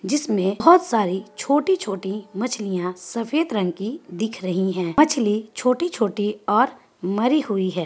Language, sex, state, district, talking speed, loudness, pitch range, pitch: Hindi, female, Bihar, Gaya, 135 wpm, -22 LUFS, 190-255 Hz, 215 Hz